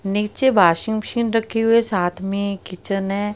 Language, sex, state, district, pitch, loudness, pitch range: Hindi, female, Haryana, Rohtak, 205 Hz, -20 LUFS, 195-225 Hz